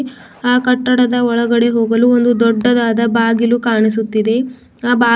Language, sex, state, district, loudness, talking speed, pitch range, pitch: Kannada, female, Karnataka, Bidar, -14 LUFS, 115 wpm, 230-245 Hz, 235 Hz